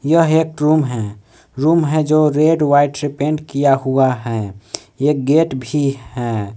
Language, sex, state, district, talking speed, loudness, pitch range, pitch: Hindi, male, Jharkhand, Palamu, 165 wpm, -16 LUFS, 125-155 Hz, 140 Hz